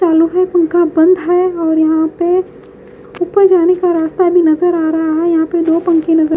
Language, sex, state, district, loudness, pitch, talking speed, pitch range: Hindi, female, Haryana, Jhajjar, -12 LUFS, 340 Hz, 205 wpm, 320-355 Hz